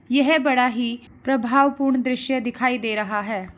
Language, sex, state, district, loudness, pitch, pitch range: Hindi, female, Bihar, East Champaran, -21 LUFS, 255 Hz, 235-270 Hz